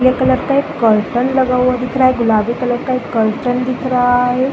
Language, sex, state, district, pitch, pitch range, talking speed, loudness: Hindi, female, Chhattisgarh, Balrampur, 250 Hz, 245-255 Hz, 240 wpm, -15 LUFS